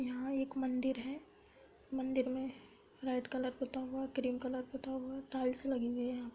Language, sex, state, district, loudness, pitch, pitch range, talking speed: Hindi, female, Uttar Pradesh, Budaun, -39 LUFS, 260 Hz, 255-265 Hz, 200 wpm